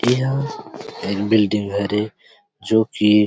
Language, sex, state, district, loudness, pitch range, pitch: Chhattisgarhi, male, Chhattisgarh, Rajnandgaon, -20 LUFS, 105-110 Hz, 105 Hz